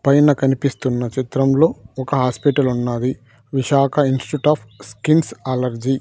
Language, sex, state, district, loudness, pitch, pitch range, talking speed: Telugu, male, Andhra Pradesh, Sri Satya Sai, -18 LUFS, 135 Hz, 125-140 Hz, 120 wpm